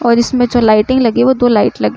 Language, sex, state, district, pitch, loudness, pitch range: Hindi, female, Uttar Pradesh, Budaun, 240 Hz, -11 LUFS, 235-245 Hz